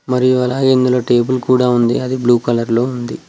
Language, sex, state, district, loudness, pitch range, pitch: Telugu, male, Telangana, Mahabubabad, -14 LUFS, 120-130 Hz, 125 Hz